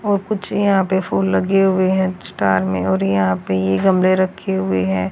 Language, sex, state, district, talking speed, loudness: Hindi, female, Haryana, Charkhi Dadri, 210 wpm, -17 LUFS